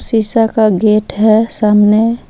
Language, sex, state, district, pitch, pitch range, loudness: Hindi, female, Jharkhand, Palamu, 215 Hz, 210-225 Hz, -11 LUFS